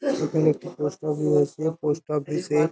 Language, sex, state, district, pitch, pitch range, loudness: Bengali, male, West Bengal, Jhargram, 155 Hz, 150-160 Hz, -25 LUFS